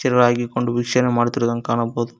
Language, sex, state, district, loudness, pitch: Kannada, male, Karnataka, Koppal, -20 LUFS, 120 Hz